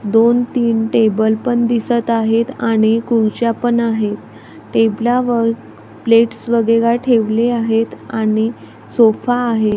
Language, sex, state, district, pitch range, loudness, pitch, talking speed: Marathi, female, Maharashtra, Gondia, 220-235 Hz, -15 LUFS, 230 Hz, 115 wpm